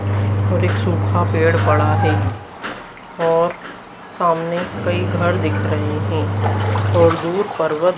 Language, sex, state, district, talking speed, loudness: Hindi, female, Madhya Pradesh, Dhar, 120 wpm, -18 LUFS